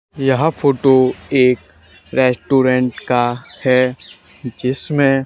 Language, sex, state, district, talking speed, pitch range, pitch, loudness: Hindi, male, Haryana, Charkhi Dadri, 80 wpm, 125-135 Hz, 130 Hz, -16 LUFS